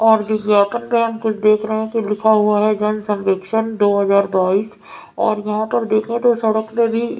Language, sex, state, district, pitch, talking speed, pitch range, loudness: Hindi, female, Maharashtra, Mumbai Suburban, 215 Hz, 215 wpm, 210-225 Hz, -17 LUFS